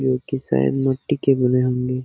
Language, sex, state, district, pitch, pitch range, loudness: Hindi, male, Jharkhand, Jamtara, 130 Hz, 125-135 Hz, -20 LUFS